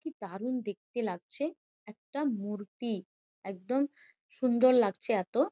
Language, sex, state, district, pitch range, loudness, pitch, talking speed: Bengali, female, West Bengal, Malda, 205-275 Hz, -32 LUFS, 240 Hz, 110 wpm